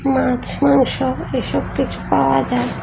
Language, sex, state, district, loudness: Bengali, female, Tripura, West Tripura, -18 LUFS